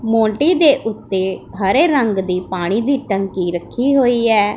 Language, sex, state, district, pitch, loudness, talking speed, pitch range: Punjabi, female, Punjab, Pathankot, 215 Hz, -16 LUFS, 155 wpm, 190-260 Hz